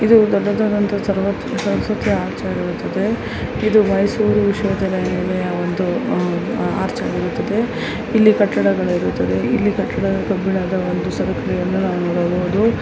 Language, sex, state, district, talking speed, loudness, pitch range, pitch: Kannada, female, Karnataka, Mysore, 100 wpm, -18 LUFS, 185-215 Hz, 200 Hz